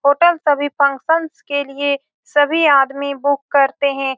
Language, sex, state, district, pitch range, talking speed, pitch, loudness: Hindi, female, Bihar, Saran, 275-295 Hz, 145 wpm, 285 Hz, -16 LUFS